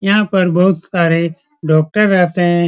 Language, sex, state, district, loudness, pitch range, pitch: Hindi, male, Bihar, Supaul, -14 LUFS, 170-195 Hz, 180 Hz